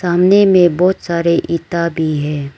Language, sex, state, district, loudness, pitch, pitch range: Hindi, female, Arunachal Pradesh, Lower Dibang Valley, -14 LUFS, 170 Hz, 160-180 Hz